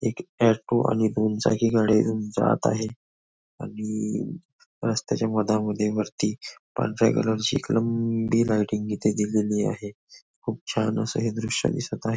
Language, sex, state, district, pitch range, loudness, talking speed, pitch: Marathi, male, Maharashtra, Nagpur, 105-115 Hz, -25 LUFS, 140 wpm, 110 Hz